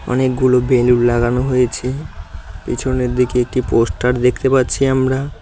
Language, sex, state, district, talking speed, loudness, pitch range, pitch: Bengali, male, West Bengal, Cooch Behar, 120 wpm, -16 LUFS, 120-130 Hz, 125 Hz